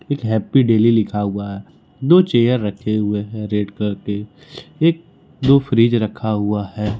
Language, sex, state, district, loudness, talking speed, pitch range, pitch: Hindi, male, Jharkhand, Ranchi, -18 LUFS, 155 wpm, 105-135 Hz, 110 Hz